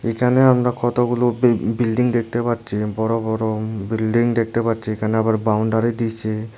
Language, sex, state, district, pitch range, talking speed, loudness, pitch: Bengali, male, Tripura, Unakoti, 110-120 Hz, 135 wpm, -19 LUFS, 115 Hz